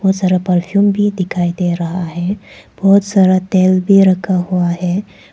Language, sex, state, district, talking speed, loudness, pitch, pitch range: Hindi, female, Arunachal Pradesh, Papum Pare, 170 wpm, -14 LUFS, 185 Hz, 180-195 Hz